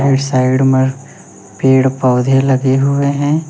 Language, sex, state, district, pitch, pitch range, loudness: Hindi, male, Uttar Pradesh, Lalitpur, 135 Hz, 130-140 Hz, -13 LUFS